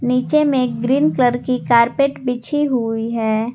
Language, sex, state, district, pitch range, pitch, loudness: Hindi, female, Jharkhand, Garhwa, 235-275 Hz, 250 Hz, -17 LUFS